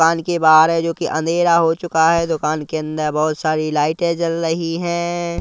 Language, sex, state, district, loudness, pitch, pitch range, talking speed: Hindi, male, Punjab, Kapurthala, -17 LUFS, 165 Hz, 155-170 Hz, 200 wpm